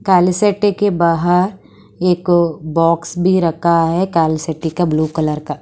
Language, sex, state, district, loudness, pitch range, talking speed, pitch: Hindi, female, Haryana, Charkhi Dadri, -15 LUFS, 160-180 Hz, 140 wpm, 170 Hz